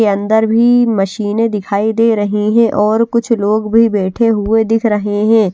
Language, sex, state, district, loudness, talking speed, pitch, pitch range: Hindi, female, Bihar, West Champaran, -13 LUFS, 185 wpm, 220 Hz, 205-230 Hz